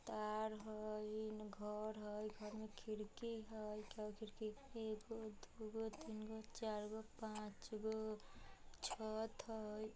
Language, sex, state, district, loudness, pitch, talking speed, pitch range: Hindi, female, Bihar, Vaishali, -49 LUFS, 215 Hz, 115 wpm, 215-220 Hz